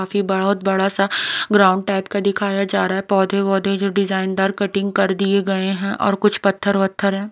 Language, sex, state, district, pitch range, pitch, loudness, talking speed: Hindi, female, Haryana, Rohtak, 195-200 Hz, 195 Hz, -18 LUFS, 190 wpm